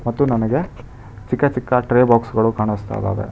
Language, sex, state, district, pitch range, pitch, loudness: Kannada, male, Karnataka, Bangalore, 110-125 Hz, 115 Hz, -18 LUFS